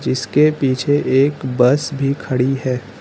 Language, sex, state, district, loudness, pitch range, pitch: Hindi, male, Uttar Pradesh, Lucknow, -17 LUFS, 130-140 Hz, 135 Hz